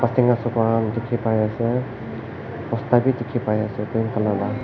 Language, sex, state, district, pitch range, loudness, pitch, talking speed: Nagamese, male, Nagaland, Kohima, 110-120 Hz, -22 LUFS, 115 Hz, 180 wpm